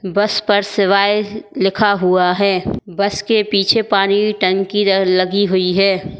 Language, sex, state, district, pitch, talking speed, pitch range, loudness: Hindi, female, Uttar Pradesh, Lalitpur, 200 Hz, 135 wpm, 190-205 Hz, -15 LUFS